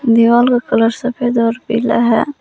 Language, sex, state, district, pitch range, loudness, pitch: Hindi, female, Jharkhand, Palamu, 230-245 Hz, -14 LUFS, 235 Hz